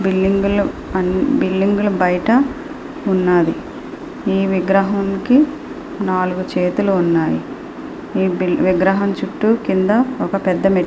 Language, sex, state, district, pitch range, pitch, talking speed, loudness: Telugu, female, Andhra Pradesh, Srikakulam, 185-260 Hz, 195 Hz, 95 wpm, -17 LUFS